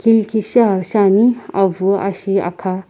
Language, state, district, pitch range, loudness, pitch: Sumi, Nagaland, Kohima, 190-220 Hz, -16 LUFS, 195 Hz